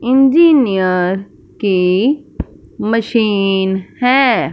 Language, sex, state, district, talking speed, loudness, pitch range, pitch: Hindi, female, Punjab, Fazilka, 55 wpm, -14 LUFS, 190-260 Hz, 220 Hz